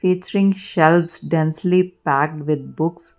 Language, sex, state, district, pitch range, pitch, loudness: English, female, Karnataka, Bangalore, 155-185 Hz, 170 Hz, -19 LUFS